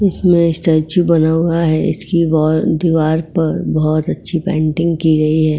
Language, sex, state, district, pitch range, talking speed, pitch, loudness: Hindi, female, Uttar Pradesh, Etah, 155-170 Hz, 160 wpm, 160 Hz, -14 LUFS